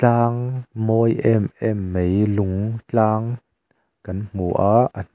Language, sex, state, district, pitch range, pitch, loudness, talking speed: Mizo, male, Mizoram, Aizawl, 100-120 Hz, 110 Hz, -20 LUFS, 140 wpm